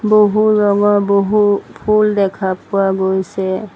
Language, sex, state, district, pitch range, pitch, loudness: Assamese, female, Assam, Sonitpur, 190-210 Hz, 200 Hz, -14 LUFS